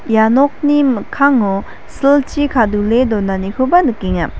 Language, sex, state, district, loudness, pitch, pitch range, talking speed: Garo, female, Meghalaya, South Garo Hills, -14 LUFS, 245 Hz, 205-280 Hz, 95 wpm